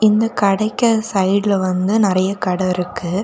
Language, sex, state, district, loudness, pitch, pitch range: Tamil, female, Tamil Nadu, Kanyakumari, -17 LUFS, 200 Hz, 185-215 Hz